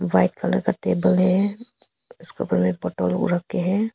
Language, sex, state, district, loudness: Hindi, female, Arunachal Pradesh, Papum Pare, -21 LUFS